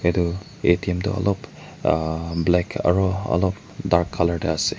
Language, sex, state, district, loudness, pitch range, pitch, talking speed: Nagamese, male, Nagaland, Kohima, -22 LUFS, 85-100 Hz, 90 Hz, 150 wpm